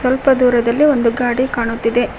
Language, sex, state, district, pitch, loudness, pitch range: Kannada, female, Karnataka, Koppal, 245 Hz, -15 LUFS, 235-260 Hz